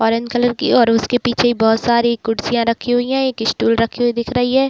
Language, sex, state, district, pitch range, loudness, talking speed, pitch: Hindi, female, Bihar, Saran, 230-245 Hz, -16 LUFS, 255 wpm, 235 Hz